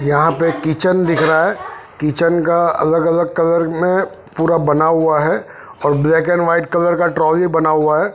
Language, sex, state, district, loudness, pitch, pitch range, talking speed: Hindi, male, Punjab, Fazilka, -15 LUFS, 165 Hz, 155-170 Hz, 205 wpm